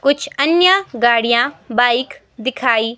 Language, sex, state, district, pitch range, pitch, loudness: Hindi, female, Himachal Pradesh, Shimla, 235-280 Hz, 255 Hz, -15 LUFS